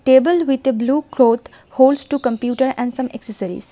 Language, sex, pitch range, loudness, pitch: English, female, 245-270 Hz, -17 LUFS, 260 Hz